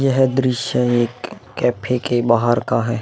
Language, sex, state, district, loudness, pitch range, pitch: Hindi, male, Uttar Pradesh, Muzaffarnagar, -18 LUFS, 120-130 Hz, 120 Hz